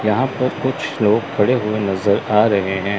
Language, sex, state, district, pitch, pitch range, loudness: Hindi, male, Chandigarh, Chandigarh, 105 Hz, 100-115 Hz, -18 LUFS